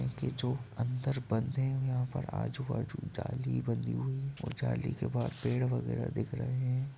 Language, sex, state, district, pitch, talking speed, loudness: Hindi, male, Bihar, Jamui, 125 Hz, 205 wpm, -35 LUFS